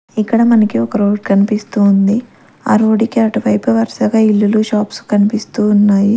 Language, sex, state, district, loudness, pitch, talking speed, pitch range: Telugu, female, Andhra Pradesh, Manyam, -13 LUFS, 210 Hz, 145 wpm, 200-220 Hz